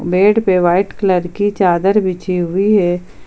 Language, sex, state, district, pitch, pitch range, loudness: Hindi, female, Jharkhand, Palamu, 185 Hz, 175-205 Hz, -14 LUFS